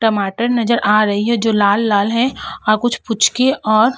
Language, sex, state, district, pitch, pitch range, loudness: Hindi, female, Uttar Pradesh, Jalaun, 225 Hz, 210-235 Hz, -15 LUFS